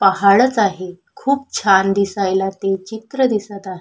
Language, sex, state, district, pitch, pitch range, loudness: Marathi, female, Maharashtra, Sindhudurg, 200 Hz, 190-220 Hz, -17 LUFS